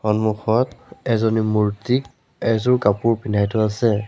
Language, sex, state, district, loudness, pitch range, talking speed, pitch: Assamese, male, Assam, Sonitpur, -20 LUFS, 105-115 Hz, 115 wpm, 110 Hz